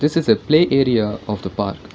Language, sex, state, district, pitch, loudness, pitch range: English, female, Karnataka, Bangalore, 110 Hz, -18 LUFS, 100-145 Hz